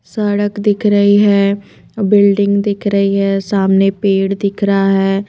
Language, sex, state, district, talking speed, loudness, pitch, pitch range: Hindi, female, Himachal Pradesh, Shimla, 145 wpm, -13 LUFS, 200 Hz, 195-205 Hz